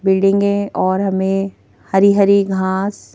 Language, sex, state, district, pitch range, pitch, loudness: Hindi, female, Madhya Pradesh, Bhopal, 190-200 Hz, 195 Hz, -15 LUFS